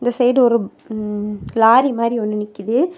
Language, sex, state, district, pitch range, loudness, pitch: Tamil, female, Tamil Nadu, Kanyakumari, 210-245 Hz, -17 LUFS, 230 Hz